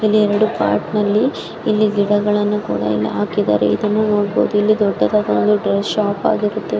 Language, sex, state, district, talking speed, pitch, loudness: Kannada, male, Karnataka, Dharwad, 130 wpm, 205 Hz, -17 LUFS